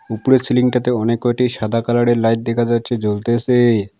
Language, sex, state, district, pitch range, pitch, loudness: Bengali, male, West Bengal, Alipurduar, 115-125 Hz, 120 Hz, -16 LUFS